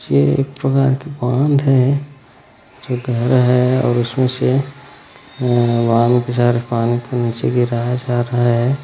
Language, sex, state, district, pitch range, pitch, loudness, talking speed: Hindi, male, Chhattisgarh, Bilaspur, 120-135 Hz, 125 Hz, -16 LUFS, 150 wpm